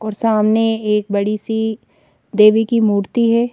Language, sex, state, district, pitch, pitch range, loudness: Hindi, female, Madhya Pradesh, Bhopal, 220 Hz, 210-225 Hz, -16 LUFS